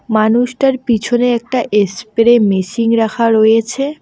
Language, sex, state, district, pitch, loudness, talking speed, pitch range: Bengali, female, West Bengal, Alipurduar, 230 Hz, -13 LUFS, 105 wpm, 220-245 Hz